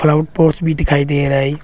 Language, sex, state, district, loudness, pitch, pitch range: Hindi, male, Arunachal Pradesh, Longding, -15 LUFS, 150 Hz, 140-160 Hz